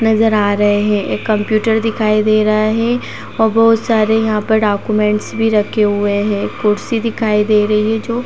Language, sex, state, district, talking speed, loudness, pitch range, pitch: Hindi, female, Uttar Pradesh, Jalaun, 195 wpm, -14 LUFS, 210-225 Hz, 215 Hz